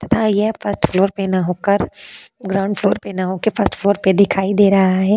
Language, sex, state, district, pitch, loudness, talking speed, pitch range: Hindi, female, Uttar Pradesh, Jalaun, 200 Hz, -17 LUFS, 220 wpm, 190-205 Hz